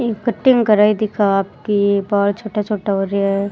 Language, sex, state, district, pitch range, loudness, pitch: Rajasthani, female, Rajasthan, Churu, 200-215 Hz, -17 LUFS, 205 Hz